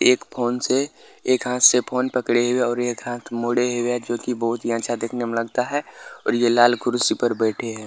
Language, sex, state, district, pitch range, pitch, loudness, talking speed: Bhojpuri, male, Bihar, Saran, 120-125 Hz, 120 Hz, -21 LUFS, 245 wpm